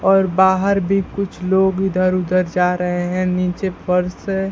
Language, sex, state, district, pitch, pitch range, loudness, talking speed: Hindi, male, Bihar, Kaimur, 185 Hz, 180-195 Hz, -18 LUFS, 175 wpm